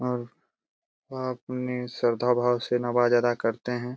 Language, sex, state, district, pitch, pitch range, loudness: Hindi, male, Jharkhand, Jamtara, 125 Hz, 120-125 Hz, -26 LUFS